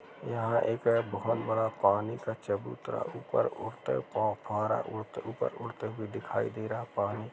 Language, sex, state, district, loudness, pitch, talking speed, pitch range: Hindi, male, Chhattisgarh, Rajnandgaon, -32 LUFS, 110 Hz, 125 wpm, 105-115 Hz